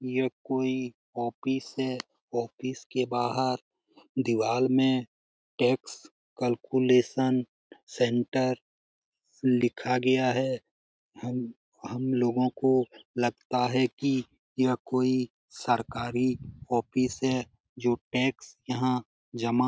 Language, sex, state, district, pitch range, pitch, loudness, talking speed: Hindi, male, Bihar, Jamui, 120-130 Hz, 125 Hz, -29 LUFS, 100 wpm